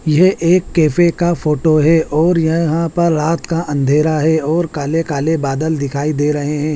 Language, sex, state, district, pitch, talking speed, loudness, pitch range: Hindi, male, Chhattisgarh, Raipur, 160 Hz, 185 wpm, -15 LUFS, 150-165 Hz